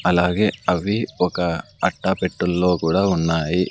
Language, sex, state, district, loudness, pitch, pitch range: Telugu, male, Andhra Pradesh, Sri Satya Sai, -20 LUFS, 90 Hz, 85-90 Hz